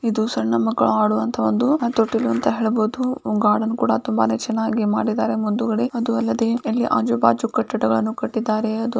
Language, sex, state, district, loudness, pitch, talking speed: Kannada, female, Karnataka, Gulbarga, -20 LUFS, 220 Hz, 140 wpm